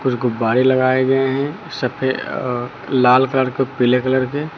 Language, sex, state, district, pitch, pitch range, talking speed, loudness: Hindi, male, Uttar Pradesh, Lucknow, 130 Hz, 125-135 Hz, 170 wpm, -17 LUFS